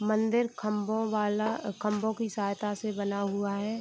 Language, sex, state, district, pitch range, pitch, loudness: Hindi, female, Bihar, Gopalganj, 205-220 Hz, 210 Hz, -31 LUFS